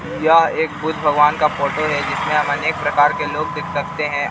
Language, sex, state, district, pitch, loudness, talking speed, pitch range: Hindi, male, Jharkhand, Ranchi, 150 Hz, -17 LUFS, 210 wpm, 145-160 Hz